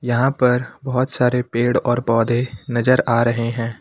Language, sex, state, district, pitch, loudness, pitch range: Hindi, male, Uttar Pradesh, Lucknow, 120 Hz, -19 LUFS, 115-125 Hz